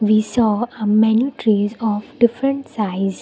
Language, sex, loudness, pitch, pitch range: English, female, -18 LUFS, 220 Hz, 210-240 Hz